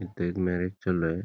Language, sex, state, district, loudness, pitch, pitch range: Marathi, male, Karnataka, Belgaum, -29 LUFS, 90 Hz, 85-90 Hz